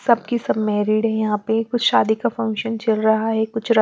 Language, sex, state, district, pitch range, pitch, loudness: Hindi, female, Chandigarh, Chandigarh, 220-230 Hz, 220 Hz, -20 LUFS